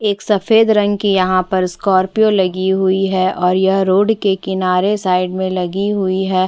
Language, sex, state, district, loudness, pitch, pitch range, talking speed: Hindi, female, Chhattisgarh, Bastar, -15 LUFS, 190 Hz, 185-205 Hz, 185 wpm